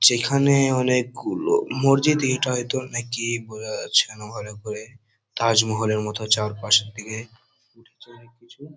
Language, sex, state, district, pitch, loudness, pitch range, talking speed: Bengali, male, West Bengal, Kolkata, 115 Hz, -22 LUFS, 110-130 Hz, 110 wpm